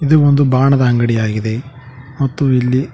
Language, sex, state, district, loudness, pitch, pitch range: Kannada, male, Karnataka, Koppal, -14 LUFS, 130 Hz, 125-135 Hz